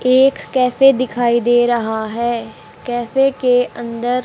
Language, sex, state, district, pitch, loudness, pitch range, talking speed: Hindi, male, Haryana, Rohtak, 245 Hz, -16 LUFS, 235-255 Hz, 125 wpm